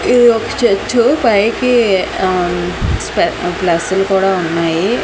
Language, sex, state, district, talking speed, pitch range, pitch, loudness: Telugu, female, Andhra Pradesh, Manyam, 105 wpm, 175-230 Hz, 190 Hz, -14 LUFS